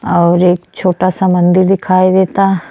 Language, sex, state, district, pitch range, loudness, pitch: Bhojpuri, female, Uttar Pradesh, Deoria, 180-190 Hz, -11 LUFS, 185 Hz